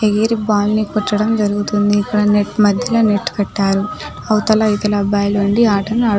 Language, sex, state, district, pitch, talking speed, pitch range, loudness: Telugu, female, Telangana, Nalgonda, 210 Hz, 165 wpm, 205-215 Hz, -15 LUFS